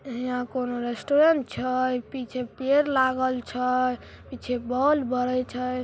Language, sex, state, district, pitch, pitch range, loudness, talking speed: Maithili, female, Bihar, Samastipur, 255 Hz, 250-260 Hz, -25 LUFS, 125 wpm